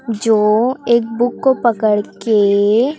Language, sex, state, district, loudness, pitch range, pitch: Hindi, female, Chhattisgarh, Raipur, -15 LUFS, 215-245 Hz, 225 Hz